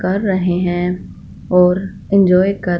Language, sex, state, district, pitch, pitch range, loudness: Hindi, female, Punjab, Fazilka, 180 Hz, 180-190 Hz, -15 LUFS